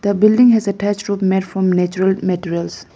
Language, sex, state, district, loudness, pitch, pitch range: English, female, Arunachal Pradesh, Lower Dibang Valley, -16 LUFS, 190 Hz, 185-205 Hz